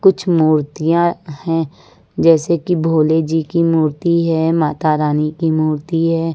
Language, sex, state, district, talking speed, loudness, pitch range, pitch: Hindi, female, Uttar Pradesh, Lucknow, 140 wpm, -16 LUFS, 155-170 Hz, 165 Hz